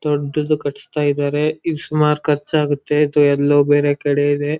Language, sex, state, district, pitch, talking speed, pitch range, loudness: Kannada, male, Karnataka, Dharwad, 145 Hz, 145 wpm, 145-150 Hz, -17 LUFS